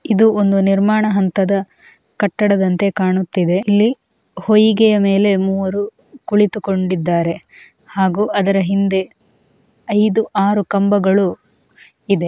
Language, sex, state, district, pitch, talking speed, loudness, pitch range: Kannada, female, Karnataka, Mysore, 200 Hz, 90 wpm, -16 LUFS, 190-210 Hz